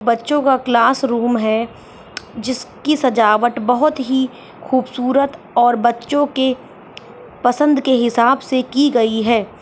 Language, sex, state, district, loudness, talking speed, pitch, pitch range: Hindi, female, Bihar, Saharsa, -16 LUFS, 120 wpm, 250 Hz, 235-270 Hz